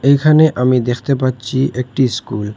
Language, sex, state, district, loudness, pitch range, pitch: Bengali, male, Assam, Hailakandi, -15 LUFS, 125-140 Hz, 130 Hz